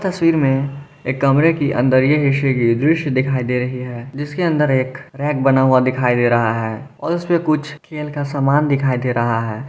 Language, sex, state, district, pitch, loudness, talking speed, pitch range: Hindi, male, Jharkhand, Garhwa, 135 Hz, -17 LUFS, 210 wpm, 125-150 Hz